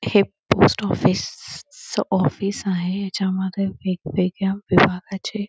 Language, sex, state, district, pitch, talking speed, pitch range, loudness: Marathi, female, Karnataka, Belgaum, 195 Hz, 120 wpm, 185-195 Hz, -21 LUFS